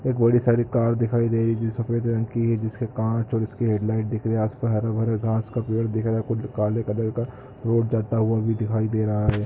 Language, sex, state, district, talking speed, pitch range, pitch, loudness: Hindi, male, Chhattisgarh, Korba, 275 wpm, 110-115 Hz, 115 Hz, -24 LUFS